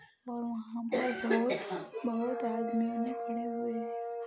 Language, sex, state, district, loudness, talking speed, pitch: Hindi, female, Uttar Pradesh, Budaun, -34 LUFS, 125 wpm, 235 Hz